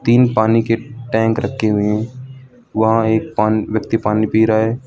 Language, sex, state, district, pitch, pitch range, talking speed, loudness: Hindi, male, Arunachal Pradesh, Lower Dibang Valley, 110 Hz, 110-120 Hz, 185 wpm, -16 LUFS